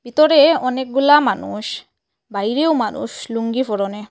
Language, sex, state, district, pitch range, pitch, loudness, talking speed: Bengali, female, Assam, Hailakandi, 220-295 Hz, 255 Hz, -17 LUFS, 115 wpm